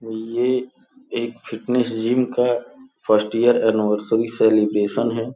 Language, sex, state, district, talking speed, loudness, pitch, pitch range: Hindi, male, Uttar Pradesh, Gorakhpur, 125 wpm, -20 LUFS, 115 Hz, 110-125 Hz